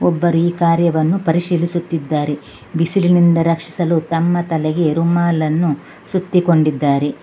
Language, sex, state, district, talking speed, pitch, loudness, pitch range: Kannada, female, Karnataka, Bangalore, 75 wpm, 165 Hz, -16 LUFS, 155-175 Hz